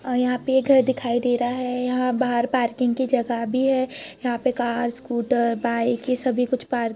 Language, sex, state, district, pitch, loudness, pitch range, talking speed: Hindi, female, Uttar Pradesh, Etah, 250 Hz, -22 LUFS, 240-255 Hz, 225 wpm